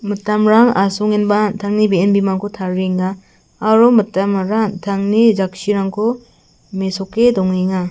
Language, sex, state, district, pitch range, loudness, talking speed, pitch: Garo, female, Meghalaya, South Garo Hills, 190-215 Hz, -15 LUFS, 90 wpm, 200 Hz